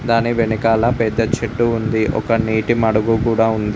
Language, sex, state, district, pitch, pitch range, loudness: Telugu, male, Telangana, Mahabubabad, 115 Hz, 110-115 Hz, -17 LUFS